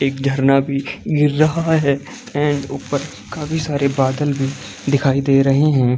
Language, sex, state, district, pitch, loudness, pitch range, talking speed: Hindi, male, Chhattisgarh, Balrampur, 140 Hz, -18 LUFS, 135-145 Hz, 170 wpm